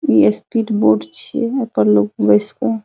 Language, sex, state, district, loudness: Maithili, female, Bihar, Saharsa, -15 LUFS